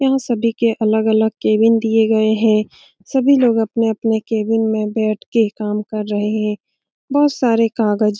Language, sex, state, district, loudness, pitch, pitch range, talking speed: Hindi, female, Bihar, Saran, -17 LUFS, 220 Hz, 215-230 Hz, 170 wpm